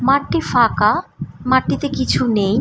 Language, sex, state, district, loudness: Bengali, female, West Bengal, Malda, -17 LUFS